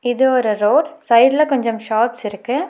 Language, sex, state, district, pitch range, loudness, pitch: Tamil, female, Tamil Nadu, Nilgiris, 225-270 Hz, -16 LUFS, 245 Hz